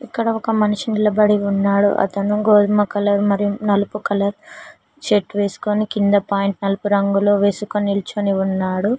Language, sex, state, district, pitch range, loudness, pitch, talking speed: Telugu, female, Telangana, Mahabubabad, 200-210 Hz, -18 LUFS, 205 Hz, 125 wpm